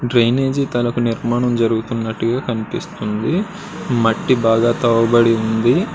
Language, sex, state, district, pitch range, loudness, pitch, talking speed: Telugu, male, Andhra Pradesh, Srikakulam, 115-125 Hz, -17 LUFS, 120 Hz, 90 wpm